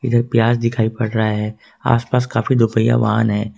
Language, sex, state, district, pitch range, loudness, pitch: Hindi, male, Jharkhand, Ranchi, 110-120 Hz, -17 LUFS, 115 Hz